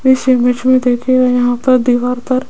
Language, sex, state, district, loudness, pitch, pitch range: Hindi, female, Rajasthan, Jaipur, -13 LUFS, 250 Hz, 245-255 Hz